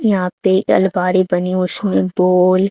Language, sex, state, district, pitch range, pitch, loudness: Hindi, female, Haryana, Charkhi Dadri, 180-190 Hz, 185 Hz, -15 LUFS